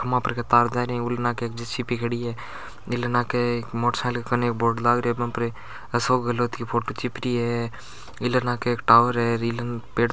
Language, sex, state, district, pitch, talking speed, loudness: Marwari, male, Rajasthan, Churu, 120 Hz, 250 wpm, -24 LUFS